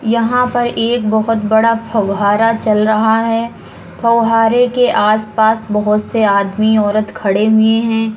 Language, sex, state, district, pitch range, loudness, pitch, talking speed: Hindi, female, Uttar Pradesh, Hamirpur, 215-230 Hz, -13 LUFS, 220 Hz, 160 wpm